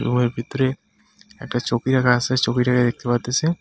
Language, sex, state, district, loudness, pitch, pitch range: Bengali, male, West Bengal, Alipurduar, -20 LUFS, 125 Hz, 120-135 Hz